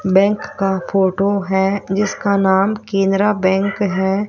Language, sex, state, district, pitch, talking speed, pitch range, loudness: Hindi, female, Haryana, Rohtak, 195 Hz, 125 wpm, 190-200 Hz, -17 LUFS